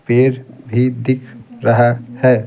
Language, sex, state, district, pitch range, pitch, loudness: Hindi, male, Bihar, Patna, 120-130 Hz, 125 Hz, -16 LUFS